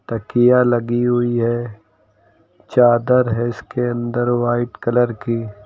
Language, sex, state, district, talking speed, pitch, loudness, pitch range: Hindi, male, Uttar Pradesh, Lucknow, 115 wpm, 120 Hz, -18 LUFS, 115-120 Hz